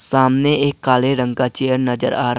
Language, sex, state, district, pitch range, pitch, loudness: Hindi, male, Assam, Kamrup Metropolitan, 125-135 Hz, 130 Hz, -17 LUFS